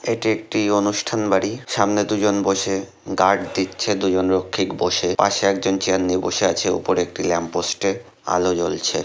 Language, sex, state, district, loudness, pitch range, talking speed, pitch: Bengali, male, West Bengal, North 24 Parganas, -20 LUFS, 95-105 Hz, 150 wpm, 95 Hz